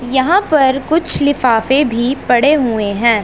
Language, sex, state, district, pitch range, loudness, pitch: Hindi, male, Punjab, Pathankot, 235-290 Hz, -13 LUFS, 260 Hz